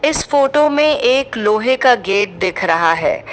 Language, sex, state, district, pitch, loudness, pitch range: Hindi, female, Uttar Pradesh, Shamli, 250 Hz, -14 LUFS, 195-285 Hz